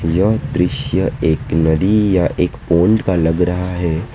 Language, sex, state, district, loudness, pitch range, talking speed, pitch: Hindi, male, West Bengal, Alipurduar, -16 LUFS, 80-95 Hz, 160 wpm, 90 Hz